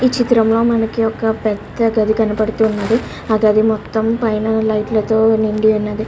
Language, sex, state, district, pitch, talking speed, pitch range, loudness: Telugu, male, Andhra Pradesh, Guntur, 220 Hz, 150 wpm, 215-225 Hz, -16 LUFS